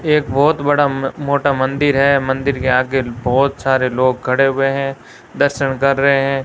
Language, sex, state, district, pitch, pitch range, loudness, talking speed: Hindi, male, Rajasthan, Bikaner, 135 Hz, 130-140 Hz, -16 LUFS, 175 wpm